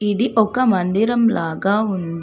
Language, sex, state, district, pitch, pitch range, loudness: Telugu, female, Telangana, Hyderabad, 210 Hz, 185-230 Hz, -18 LUFS